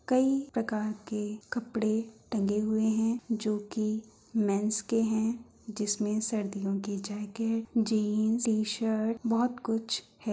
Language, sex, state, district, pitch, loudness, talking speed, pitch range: Hindi, female, Uttar Pradesh, Muzaffarnagar, 220 Hz, -31 LUFS, 120 wpm, 210-230 Hz